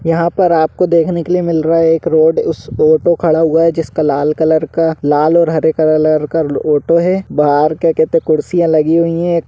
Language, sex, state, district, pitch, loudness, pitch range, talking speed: Hindi, male, Jharkhand, Sahebganj, 160 Hz, -12 LUFS, 155-170 Hz, 230 wpm